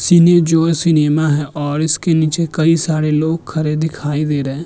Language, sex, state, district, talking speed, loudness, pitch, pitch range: Hindi, male, Maharashtra, Chandrapur, 195 wpm, -15 LUFS, 155 Hz, 150-165 Hz